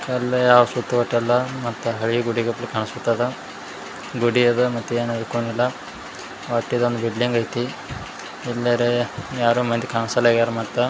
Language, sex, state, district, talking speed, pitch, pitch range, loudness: Kannada, male, Karnataka, Bijapur, 65 wpm, 120 Hz, 115-125 Hz, -21 LUFS